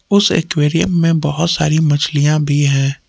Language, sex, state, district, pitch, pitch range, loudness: Hindi, male, Jharkhand, Palamu, 155 Hz, 145-170 Hz, -14 LUFS